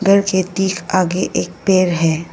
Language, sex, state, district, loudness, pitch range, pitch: Hindi, female, Arunachal Pradesh, Lower Dibang Valley, -17 LUFS, 170-190 Hz, 185 Hz